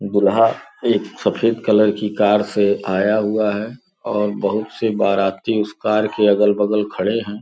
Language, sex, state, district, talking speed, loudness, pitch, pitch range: Hindi, male, Uttar Pradesh, Gorakhpur, 160 wpm, -18 LUFS, 105 Hz, 100-110 Hz